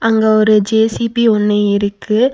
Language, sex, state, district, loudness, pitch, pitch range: Tamil, female, Tamil Nadu, Nilgiris, -13 LUFS, 215 Hz, 210-225 Hz